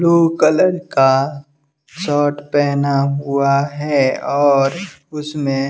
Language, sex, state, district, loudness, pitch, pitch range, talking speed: Hindi, male, Bihar, West Champaran, -16 LUFS, 145 Hz, 140-150 Hz, 95 wpm